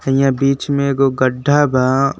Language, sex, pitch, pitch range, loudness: Bhojpuri, male, 135 Hz, 130-140 Hz, -15 LUFS